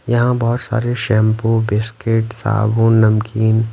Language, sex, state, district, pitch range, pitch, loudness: Hindi, male, Bihar, West Champaran, 110-120 Hz, 115 Hz, -16 LUFS